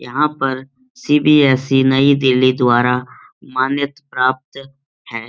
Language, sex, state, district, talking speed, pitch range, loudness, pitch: Hindi, male, Bihar, Lakhisarai, 100 wpm, 130-140 Hz, -15 LUFS, 135 Hz